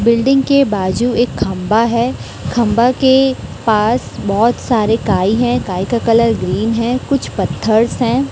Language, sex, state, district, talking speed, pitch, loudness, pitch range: Hindi, female, Chhattisgarh, Raipur, 150 wpm, 235 Hz, -14 LUFS, 215-245 Hz